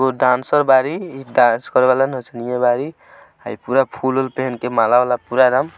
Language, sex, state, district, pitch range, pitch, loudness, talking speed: Hindi, male, Bihar, Gopalganj, 120-130 Hz, 130 Hz, -17 LUFS, 135 wpm